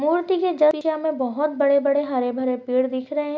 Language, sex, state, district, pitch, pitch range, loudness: Hindi, female, Chhattisgarh, Jashpur, 290 Hz, 260-310 Hz, -21 LUFS